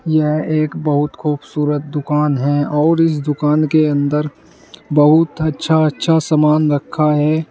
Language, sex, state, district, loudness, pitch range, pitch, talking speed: Hindi, male, Uttar Pradesh, Saharanpur, -15 LUFS, 150-155 Hz, 150 Hz, 135 wpm